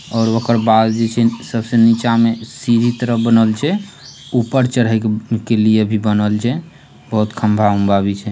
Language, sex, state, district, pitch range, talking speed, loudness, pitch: Hindi, male, Bihar, Purnia, 110-120 Hz, 175 wpm, -15 LUFS, 115 Hz